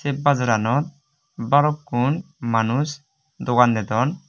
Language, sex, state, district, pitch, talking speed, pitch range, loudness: Chakma, male, Tripura, West Tripura, 140 Hz, 85 wpm, 120-150 Hz, -21 LUFS